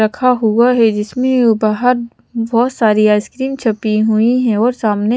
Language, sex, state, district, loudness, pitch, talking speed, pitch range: Hindi, female, Chandigarh, Chandigarh, -14 LUFS, 230 Hz, 150 wpm, 215-245 Hz